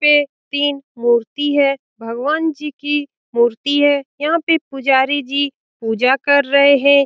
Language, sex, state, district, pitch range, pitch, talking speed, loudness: Hindi, female, Bihar, Lakhisarai, 270-290 Hz, 280 Hz, 160 wpm, -16 LUFS